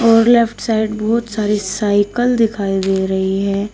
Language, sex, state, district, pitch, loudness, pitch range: Hindi, female, Uttar Pradesh, Shamli, 210 Hz, -16 LUFS, 195-225 Hz